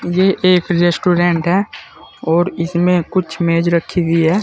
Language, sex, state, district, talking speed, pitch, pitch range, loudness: Hindi, male, Uttar Pradesh, Saharanpur, 150 wpm, 175 Hz, 170-185 Hz, -15 LUFS